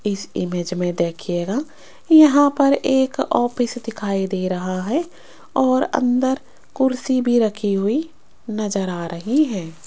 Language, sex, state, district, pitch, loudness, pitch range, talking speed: Hindi, female, Rajasthan, Jaipur, 230 Hz, -20 LUFS, 185-270 Hz, 135 wpm